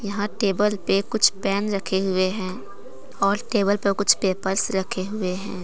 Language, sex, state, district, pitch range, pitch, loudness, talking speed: Hindi, female, Jharkhand, Deoghar, 190-205 Hz, 195 Hz, -23 LUFS, 170 wpm